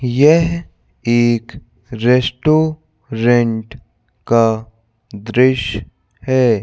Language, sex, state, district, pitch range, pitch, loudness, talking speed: Hindi, male, Madhya Pradesh, Bhopal, 110-130 Hz, 115 Hz, -15 LUFS, 55 wpm